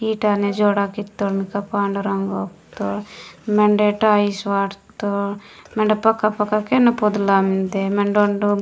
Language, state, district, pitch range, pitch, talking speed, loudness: Gondi, Chhattisgarh, Sukma, 200-210 Hz, 205 Hz, 130 wpm, -19 LUFS